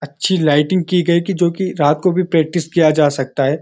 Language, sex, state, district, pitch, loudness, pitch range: Hindi, male, Uttarakhand, Uttarkashi, 165 Hz, -15 LUFS, 150-180 Hz